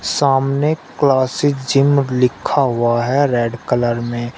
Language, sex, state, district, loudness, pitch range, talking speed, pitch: Hindi, male, Uttar Pradesh, Shamli, -16 LUFS, 120-140 Hz, 125 wpm, 130 Hz